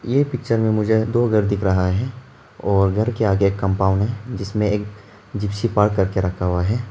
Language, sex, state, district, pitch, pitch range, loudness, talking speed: Hindi, male, Arunachal Pradesh, Lower Dibang Valley, 105 Hz, 100-115 Hz, -20 LUFS, 200 wpm